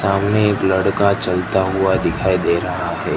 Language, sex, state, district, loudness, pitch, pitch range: Hindi, male, Gujarat, Gandhinagar, -17 LUFS, 95 Hz, 90-100 Hz